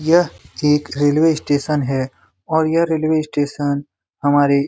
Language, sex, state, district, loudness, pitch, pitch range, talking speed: Hindi, male, Bihar, Lakhisarai, -18 LUFS, 145 Hz, 145-155 Hz, 140 wpm